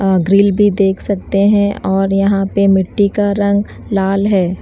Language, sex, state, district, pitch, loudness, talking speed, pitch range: Hindi, female, Odisha, Nuapada, 200 Hz, -14 LUFS, 180 wpm, 195-200 Hz